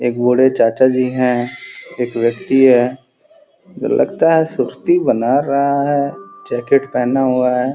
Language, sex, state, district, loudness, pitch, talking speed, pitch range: Hindi, male, Uttar Pradesh, Gorakhpur, -15 LUFS, 130 Hz, 140 wpm, 125-145 Hz